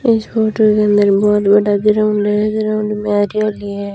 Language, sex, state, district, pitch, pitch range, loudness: Hindi, female, Rajasthan, Jaisalmer, 210 Hz, 205-215 Hz, -14 LUFS